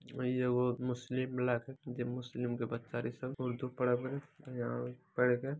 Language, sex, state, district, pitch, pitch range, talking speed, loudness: Maithili, male, Bihar, Madhepura, 125 Hz, 120-130 Hz, 85 wpm, -37 LUFS